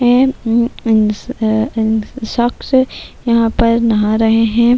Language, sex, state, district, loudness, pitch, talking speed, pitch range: Urdu, female, Bihar, Kishanganj, -14 LUFS, 230 Hz, 75 wpm, 220-245 Hz